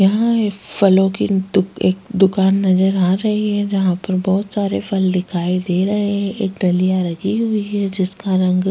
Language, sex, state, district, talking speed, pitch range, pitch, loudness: Hindi, female, Uttarakhand, Tehri Garhwal, 195 wpm, 185-205 Hz, 190 Hz, -17 LUFS